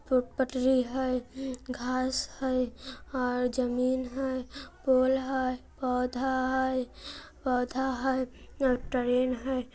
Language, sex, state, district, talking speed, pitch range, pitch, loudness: Maithili, female, Bihar, Samastipur, 105 wpm, 250-265 Hz, 255 Hz, -30 LUFS